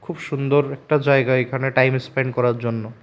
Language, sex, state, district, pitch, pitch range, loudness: Bengali, male, Tripura, West Tripura, 135 Hz, 125-140 Hz, -20 LUFS